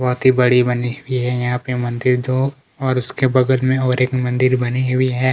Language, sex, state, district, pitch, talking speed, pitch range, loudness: Hindi, male, Chhattisgarh, Kabirdham, 130 Hz, 225 wpm, 125-130 Hz, -17 LUFS